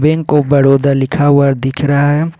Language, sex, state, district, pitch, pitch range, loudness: Hindi, male, Jharkhand, Ranchi, 145 Hz, 140-150 Hz, -12 LUFS